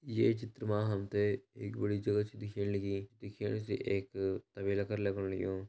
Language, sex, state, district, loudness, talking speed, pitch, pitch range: Garhwali, male, Uttarakhand, Uttarkashi, -36 LUFS, 180 wpm, 100 Hz, 100-105 Hz